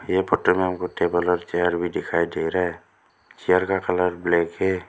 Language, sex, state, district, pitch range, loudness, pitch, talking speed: Hindi, male, Arunachal Pradesh, Lower Dibang Valley, 85-90 Hz, -23 LUFS, 90 Hz, 210 wpm